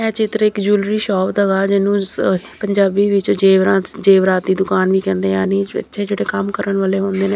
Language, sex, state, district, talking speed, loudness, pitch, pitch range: Punjabi, female, Chandigarh, Chandigarh, 205 wpm, -16 LUFS, 195 Hz, 190-205 Hz